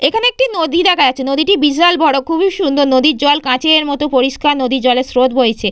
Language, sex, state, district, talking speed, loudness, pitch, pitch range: Bengali, female, West Bengal, Purulia, 200 wpm, -12 LUFS, 290 Hz, 260-330 Hz